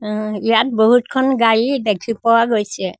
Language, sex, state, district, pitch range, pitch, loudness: Assamese, female, Assam, Sonitpur, 210-235 Hz, 225 Hz, -16 LUFS